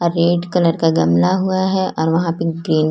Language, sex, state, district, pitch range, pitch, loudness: Hindi, female, Chhattisgarh, Korba, 160-180 Hz, 170 Hz, -17 LUFS